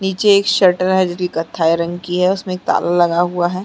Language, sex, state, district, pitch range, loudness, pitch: Hindi, female, Chhattisgarh, Sarguja, 175-185 Hz, -16 LUFS, 180 Hz